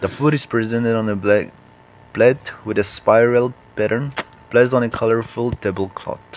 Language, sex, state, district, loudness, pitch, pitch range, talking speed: English, male, Nagaland, Kohima, -18 LUFS, 115 Hz, 105-120 Hz, 150 wpm